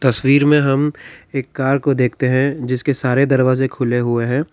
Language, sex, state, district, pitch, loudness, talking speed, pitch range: Hindi, male, Karnataka, Bangalore, 135 Hz, -17 LUFS, 185 wpm, 125-140 Hz